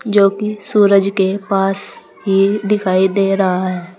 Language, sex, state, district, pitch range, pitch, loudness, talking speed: Hindi, female, Uttar Pradesh, Saharanpur, 190-205 Hz, 195 Hz, -15 LUFS, 150 wpm